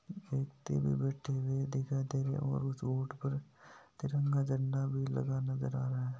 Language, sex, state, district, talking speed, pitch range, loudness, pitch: Hindi, male, Rajasthan, Nagaur, 185 wpm, 130-140 Hz, -36 LUFS, 135 Hz